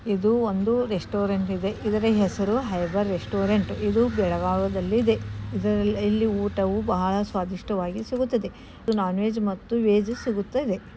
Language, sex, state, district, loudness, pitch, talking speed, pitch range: Kannada, female, Karnataka, Belgaum, -25 LUFS, 205 Hz, 125 wpm, 195-225 Hz